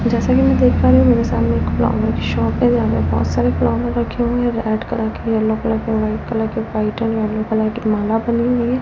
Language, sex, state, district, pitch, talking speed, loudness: Hindi, female, Delhi, New Delhi, 215 Hz, 265 wpm, -17 LUFS